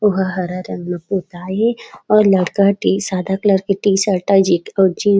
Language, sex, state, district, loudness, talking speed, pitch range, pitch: Chhattisgarhi, female, Chhattisgarh, Raigarh, -16 LUFS, 205 wpm, 185-200 Hz, 195 Hz